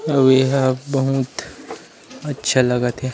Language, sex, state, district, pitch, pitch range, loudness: Chhattisgarhi, male, Chhattisgarh, Rajnandgaon, 135 Hz, 130-135 Hz, -18 LUFS